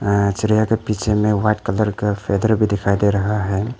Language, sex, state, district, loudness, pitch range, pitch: Hindi, male, Arunachal Pradesh, Papum Pare, -18 LUFS, 100-110 Hz, 105 Hz